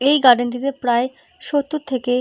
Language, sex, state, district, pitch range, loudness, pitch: Bengali, female, West Bengal, Purulia, 245-280 Hz, -19 LUFS, 260 Hz